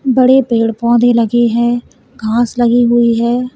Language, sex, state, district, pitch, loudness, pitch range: Hindi, female, Uttar Pradesh, Lalitpur, 240 Hz, -12 LUFS, 235-245 Hz